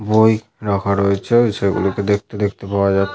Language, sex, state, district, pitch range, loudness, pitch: Bengali, male, West Bengal, Malda, 100-110 Hz, -17 LUFS, 100 Hz